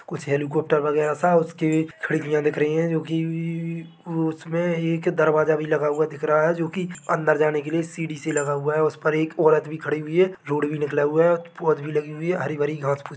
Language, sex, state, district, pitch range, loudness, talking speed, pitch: Hindi, male, Chhattisgarh, Bilaspur, 150-165 Hz, -23 LUFS, 255 wpm, 155 Hz